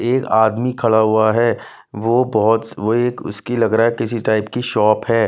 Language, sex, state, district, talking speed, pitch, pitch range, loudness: Hindi, male, Bihar, West Champaran, 205 wpm, 115 Hz, 110-120 Hz, -17 LUFS